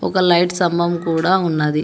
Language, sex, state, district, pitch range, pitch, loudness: Telugu, male, Telangana, Hyderabad, 165-180 Hz, 175 Hz, -17 LUFS